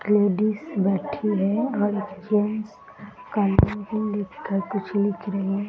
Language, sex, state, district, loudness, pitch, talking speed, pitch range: Hindi, female, Bihar, Muzaffarpur, -24 LUFS, 205 Hz, 105 wpm, 200-215 Hz